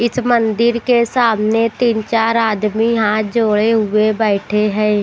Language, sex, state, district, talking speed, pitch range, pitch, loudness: Hindi, female, Haryana, Rohtak, 130 wpm, 215-235 Hz, 225 Hz, -15 LUFS